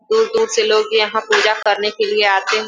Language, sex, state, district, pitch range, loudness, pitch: Hindi, female, Uttar Pradesh, Gorakhpur, 210-225 Hz, -15 LUFS, 215 Hz